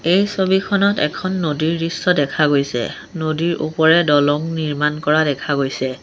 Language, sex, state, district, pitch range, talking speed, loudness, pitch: Assamese, male, Assam, Sonitpur, 145-175 Hz, 140 wpm, -18 LUFS, 155 Hz